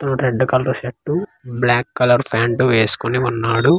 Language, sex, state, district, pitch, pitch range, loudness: Telugu, male, Andhra Pradesh, Manyam, 125 Hz, 115-130 Hz, -17 LUFS